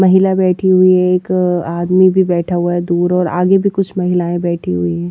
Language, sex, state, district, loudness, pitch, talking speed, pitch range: Hindi, female, Haryana, Jhajjar, -13 LUFS, 180 Hz, 225 wpm, 175-185 Hz